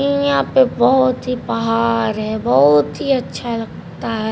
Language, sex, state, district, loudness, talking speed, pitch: Hindi, female, Bihar, Patna, -16 LUFS, 155 wpm, 230 Hz